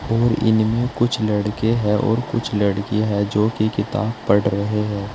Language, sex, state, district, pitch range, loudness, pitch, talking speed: Hindi, male, Uttar Pradesh, Saharanpur, 105-115 Hz, -20 LUFS, 105 Hz, 175 wpm